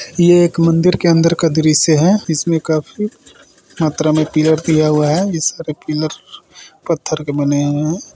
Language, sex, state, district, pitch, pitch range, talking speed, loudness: Hindi, male, West Bengal, Purulia, 160 Hz, 155-170 Hz, 175 wpm, -15 LUFS